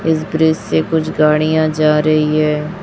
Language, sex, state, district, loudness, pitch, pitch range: Hindi, female, Chhattisgarh, Raipur, -14 LUFS, 155 Hz, 150-160 Hz